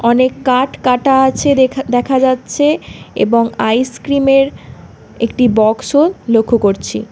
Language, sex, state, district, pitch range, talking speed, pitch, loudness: Bengali, female, Karnataka, Bangalore, 230-270 Hz, 110 wpm, 255 Hz, -13 LUFS